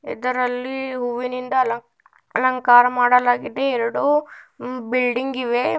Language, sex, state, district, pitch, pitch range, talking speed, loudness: Kannada, female, Karnataka, Bidar, 250 Hz, 245-255 Hz, 85 wpm, -20 LUFS